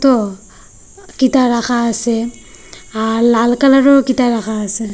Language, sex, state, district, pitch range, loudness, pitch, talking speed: Bengali, female, Assam, Hailakandi, 225-260 Hz, -13 LUFS, 235 Hz, 120 wpm